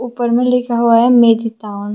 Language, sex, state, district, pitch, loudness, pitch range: Hindi, female, Tripura, West Tripura, 235 Hz, -13 LUFS, 230-245 Hz